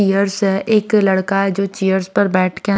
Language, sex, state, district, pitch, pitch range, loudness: Hindi, female, Maharashtra, Mumbai Suburban, 195 Hz, 190-205 Hz, -16 LUFS